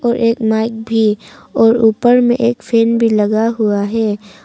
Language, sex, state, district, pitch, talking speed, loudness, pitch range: Hindi, female, Arunachal Pradesh, Papum Pare, 225 Hz, 160 wpm, -14 LUFS, 215-230 Hz